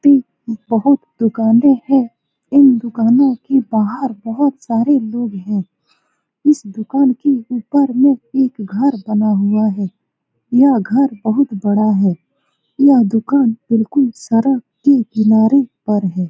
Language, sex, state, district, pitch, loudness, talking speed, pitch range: Hindi, female, Bihar, Saran, 235 Hz, -15 LUFS, 130 wpm, 215-275 Hz